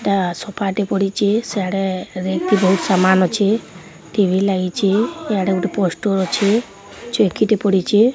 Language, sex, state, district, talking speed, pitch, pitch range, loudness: Odia, female, Odisha, Sambalpur, 130 wpm, 195 Hz, 185-205 Hz, -18 LUFS